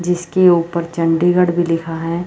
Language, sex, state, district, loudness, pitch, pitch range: Hindi, female, Chandigarh, Chandigarh, -16 LUFS, 170 Hz, 165-175 Hz